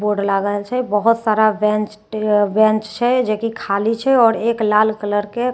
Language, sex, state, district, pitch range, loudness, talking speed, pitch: Maithili, female, Bihar, Katihar, 210-230 Hz, -17 LUFS, 205 wpm, 215 Hz